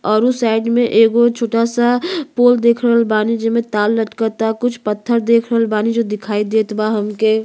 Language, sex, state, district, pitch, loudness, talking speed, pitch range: Bhojpuri, female, Uttar Pradesh, Gorakhpur, 230 Hz, -15 LUFS, 210 wpm, 220-235 Hz